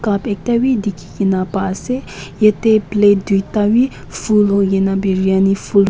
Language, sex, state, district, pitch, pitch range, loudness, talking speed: Nagamese, female, Nagaland, Kohima, 200 Hz, 195-215 Hz, -15 LUFS, 160 wpm